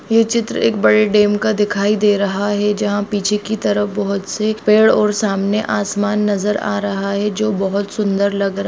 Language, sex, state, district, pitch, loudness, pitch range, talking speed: Hindi, female, Bihar, Bhagalpur, 205 Hz, -16 LUFS, 200-210 Hz, 200 wpm